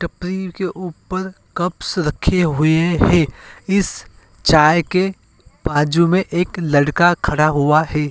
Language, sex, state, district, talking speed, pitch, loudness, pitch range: Hindi, male, Uttar Pradesh, Varanasi, 125 wpm, 170 Hz, -17 LUFS, 150-180 Hz